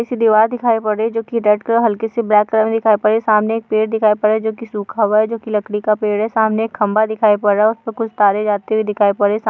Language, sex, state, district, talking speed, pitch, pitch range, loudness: Hindi, female, Bihar, Darbhanga, 330 wpm, 220 Hz, 210-225 Hz, -16 LUFS